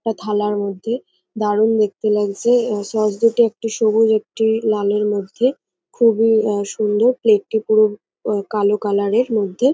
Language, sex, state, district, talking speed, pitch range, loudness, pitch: Bengali, female, West Bengal, North 24 Parganas, 160 wpm, 205-225 Hz, -18 LUFS, 215 Hz